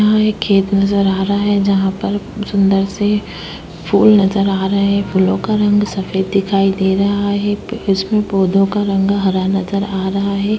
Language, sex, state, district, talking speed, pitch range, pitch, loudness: Hindi, female, Uttar Pradesh, Budaun, 185 wpm, 195-205 Hz, 200 Hz, -15 LUFS